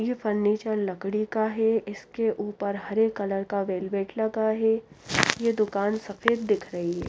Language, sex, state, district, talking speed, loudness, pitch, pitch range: Hindi, female, Haryana, Rohtak, 160 wpm, -26 LUFS, 210 Hz, 200-220 Hz